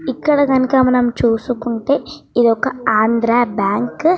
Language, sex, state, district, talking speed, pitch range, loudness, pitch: Telugu, female, Andhra Pradesh, Srikakulam, 130 wpm, 230-265 Hz, -16 LUFS, 240 Hz